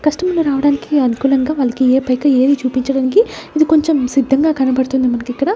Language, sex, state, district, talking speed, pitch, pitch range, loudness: Telugu, female, Andhra Pradesh, Sri Satya Sai, 150 wpm, 275 Hz, 260-300 Hz, -14 LUFS